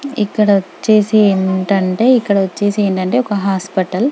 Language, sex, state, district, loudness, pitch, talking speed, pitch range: Telugu, female, Telangana, Karimnagar, -14 LUFS, 200 Hz, 130 wpm, 190-215 Hz